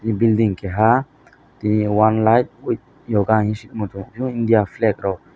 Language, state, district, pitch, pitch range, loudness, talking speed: Kokborok, Tripura, West Tripura, 110 Hz, 105-115 Hz, -19 LUFS, 145 wpm